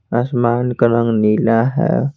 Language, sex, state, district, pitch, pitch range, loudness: Hindi, male, Bihar, Patna, 120 Hz, 115-130 Hz, -16 LUFS